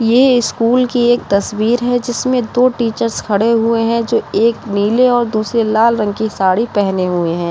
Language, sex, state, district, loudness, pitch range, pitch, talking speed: Hindi, female, Uttar Pradesh, Budaun, -14 LUFS, 210-240 Hz, 230 Hz, 190 wpm